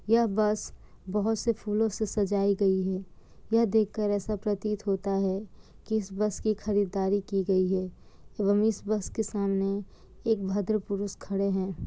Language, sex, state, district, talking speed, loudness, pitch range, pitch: Hindi, female, Bihar, Kishanganj, 165 wpm, -29 LUFS, 195-215 Hz, 205 Hz